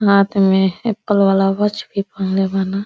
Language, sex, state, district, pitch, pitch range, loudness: Bhojpuri, female, Uttar Pradesh, Deoria, 195 Hz, 195-205 Hz, -16 LUFS